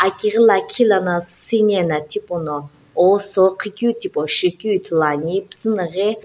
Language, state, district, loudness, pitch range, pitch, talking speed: Sumi, Nagaland, Dimapur, -17 LUFS, 170-210 Hz, 190 Hz, 165 wpm